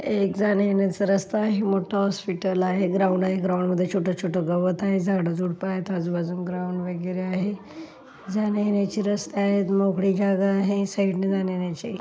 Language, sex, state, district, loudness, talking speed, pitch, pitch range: Marathi, female, Maharashtra, Solapur, -24 LUFS, 145 wpm, 195 Hz, 185-200 Hz